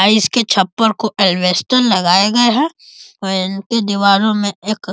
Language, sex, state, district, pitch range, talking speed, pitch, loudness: Hindi, male, Bihar, East Champaran, 190-230 Hz, 170 wpm, 205 Hz, -14 LUFS